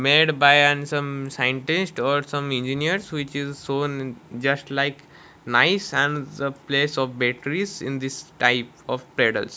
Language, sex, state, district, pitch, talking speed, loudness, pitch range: English, male, Odisha, Malkangiri, 140 Hz, 150 wpm, -22 LUFS, 135-145 Hz